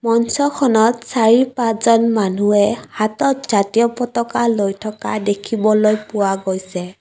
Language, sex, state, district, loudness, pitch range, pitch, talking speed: Assamese, female, Assam, Kamrup Metropolitan, -17 LUFS, 205-235 Hz, 220 Hz, 95 wpm